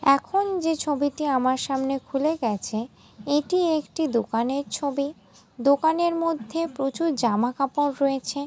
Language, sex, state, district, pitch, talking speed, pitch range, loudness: Bengali, female, West Bengal, Jalpaiguri, 280 Hz, 120 wpm, 265-315 Hz, -25 LUFS